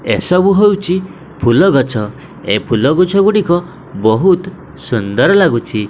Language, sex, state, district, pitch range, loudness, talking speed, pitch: Odia, male, Odisha, Khordha, 120-190 Hz, -12 LUFS, 100 wpm, 175 Hz